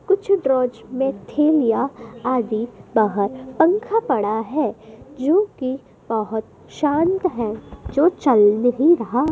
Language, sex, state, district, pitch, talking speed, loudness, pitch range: Hindi, female, Madhya Pradesh, Dhar, 260 Hz, 115 wpm, -20 LUFS, 225-310 Hz